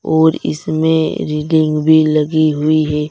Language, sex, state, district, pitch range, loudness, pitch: Hindi, male, Uttar Pradesh, Saharanpur, 150-160 Hz, -14 LUFS, 155 Hz